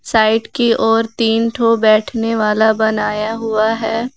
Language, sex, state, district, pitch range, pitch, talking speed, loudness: Hindi, female, Jharkhand, Garhwa, 220-230 Hz, 225 Hz, 145 wpm, -15 LUFS